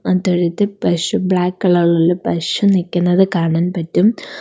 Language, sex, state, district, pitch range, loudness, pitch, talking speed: Malayalam, female, Kerala, Kollam, 170-190 Hz, -16 LUFS, 180 Hz, 135 wpm